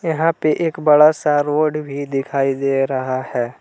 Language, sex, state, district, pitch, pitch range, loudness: Hindi, male, Jharkhand, Palamu, 145 Hz, 135-155 Hz, -17 LUFS